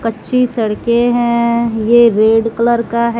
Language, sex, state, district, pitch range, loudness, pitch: Hindi, female, Bihar, West Champaran, 225-235 Hz, -13 LUFS, 235 Hz